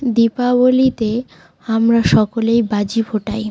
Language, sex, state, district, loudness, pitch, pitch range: Bengali, female, West Bengal, Jalpaiguri, -16 LUFS, 230 Hz, 220-245 Hz